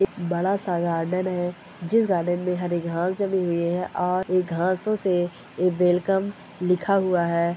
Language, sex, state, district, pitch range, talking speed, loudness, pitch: Hindi, male, Bihar, Kishanganj, 175-190 Hz, 165 wpm, -24 LUFS, 180 Hz